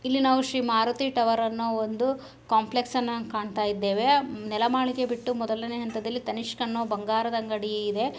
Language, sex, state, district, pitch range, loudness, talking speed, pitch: Kannada, female, Karnataka, Bellary, 220-250 Hz, -27 LUFS, 155 wpm, 230 Hz